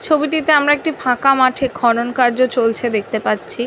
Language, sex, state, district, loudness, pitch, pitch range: Bengali, female, West Bengal, North 24 Parganas, -16 LUFS, 255 Hz, 240-290 Hz